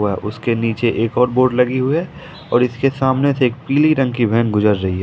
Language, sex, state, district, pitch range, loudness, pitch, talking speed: Hindi, male, Jharkhand, Ranchi, 115-135 Hz, -17 LUFS, 125 Hz, 250 wpm